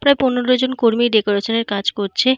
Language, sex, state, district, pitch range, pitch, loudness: Bengali, female, Jharkhand, Jamtara, 210-260 Hz, 235 Hz, -17 LUFS